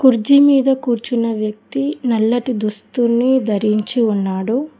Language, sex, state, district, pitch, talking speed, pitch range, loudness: Telugu, female, Telangana, Hyderabad, 235 Hz, 100 wpm, 215-260 Hz, -16 LUFS